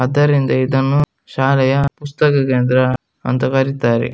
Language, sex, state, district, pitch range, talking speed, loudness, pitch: Kannada, male, Karnataka, Dakshina Kannada, 130-140 Hz, 100 wpm, -16 LUFS, 135 Hz